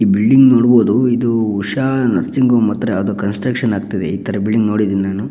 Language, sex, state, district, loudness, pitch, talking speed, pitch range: Kannada, male, Karnataka, Shimoga, -15 LUFS, 110 Hz, 170 wpm, 100-125 Hz